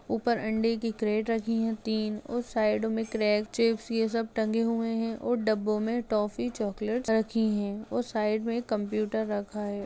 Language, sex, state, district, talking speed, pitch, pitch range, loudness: Hindi, female, Bihar, Gaya, 175 wpm, 220 Hz, 215-230 Hz, -29 LUFS